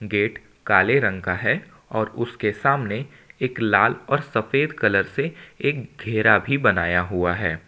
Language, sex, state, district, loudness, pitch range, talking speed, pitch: Hindi, male, Jharkhand, Ranchi, -22 LUFS, 105-135 Hz, 155 wpm, 110 Hz